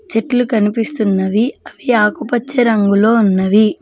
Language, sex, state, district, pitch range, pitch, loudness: Telugu, female, Telangana, Mahabubabad, 205-245 Hz, 225 Hz, -14 LUFS